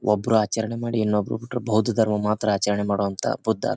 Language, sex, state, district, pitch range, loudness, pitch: Kannada, male, Karnataka, Bijapur, 105-115 Hz, -23 LUFS, 110 Hz